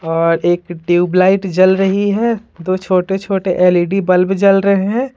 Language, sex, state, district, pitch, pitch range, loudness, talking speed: Hindi, female, Bihar, Patna, 185 Hz, 180-195 Hz, -14 LUFS, 160 wpm